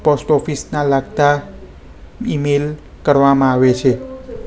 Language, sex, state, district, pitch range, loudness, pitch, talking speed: Gujarati, male, Gujarat, Gandhinagar, 130-150 Hz, -16 LUFS, 145 Hz, 105 wpm